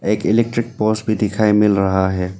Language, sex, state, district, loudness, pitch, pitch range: Hindi, male, Arunachal Pradesh, Lower Dibang Valley, -17 LUFS, 105 Hz, 95-110 Hz